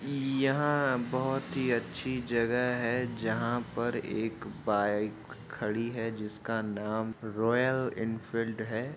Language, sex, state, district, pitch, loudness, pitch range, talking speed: Hindi, male, Uttar Pradesh, Jyotiba Phule Nagar, 115 Hz, -32 LUFS, 110-130 Hz, 115 wpm